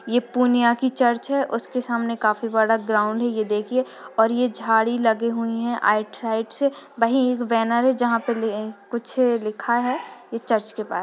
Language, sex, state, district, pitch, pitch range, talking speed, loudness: Hindi, female, Bihar, Purnia, 235 Hz, 225-245 Hz, 190 wpm, -22 LUFS